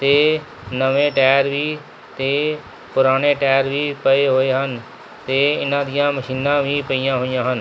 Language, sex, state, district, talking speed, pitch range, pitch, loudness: Punjabi, male, Punjab, Kapurthala, 160 wpm, 130-145 Hz, 135 Hz, -18 LUFS